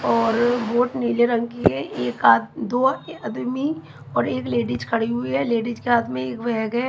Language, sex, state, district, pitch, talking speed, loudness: Hindi, female, Haryana, Charkhi Dadri, 230 Hz, 200 wpm, -22 LUFS